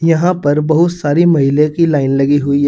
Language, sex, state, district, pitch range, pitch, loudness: Hindi, male, Uttar Pradesh, Saharanpur, 145-165 Hz, 150 Hz, -12 LUFS